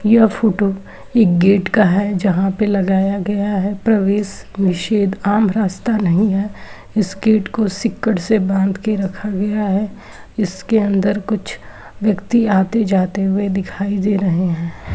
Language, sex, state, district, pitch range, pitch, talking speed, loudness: Hindi, male, Uttar Pradesh, Etah, 195-215 Hz, 200 Hz, 150 wpm, -17 LUFS